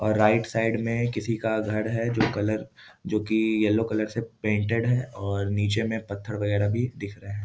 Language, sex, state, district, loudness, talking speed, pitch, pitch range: Hindi, male, Bihar, East Champaran, -26 LUFS, 210 wpm, 110 Hz, 105-115 Hz